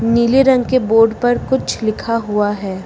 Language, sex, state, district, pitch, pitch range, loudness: Hindi, female, Uttar Pradesh, Lucknow, 230 Hz, 215-245 Hz, -15 LUFS